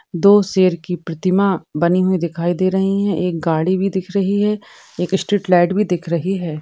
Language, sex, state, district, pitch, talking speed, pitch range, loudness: Hindi, female, Maharashtra, Dhule, 185 Hz, 210 wpm, 175-195 Hz, -17 LUFS